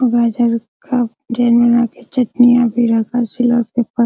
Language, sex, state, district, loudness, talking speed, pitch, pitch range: Hindi, female, Bihar, Araria, -15 LUFS, 190 wpm, 240 Hz, 235-245 Hz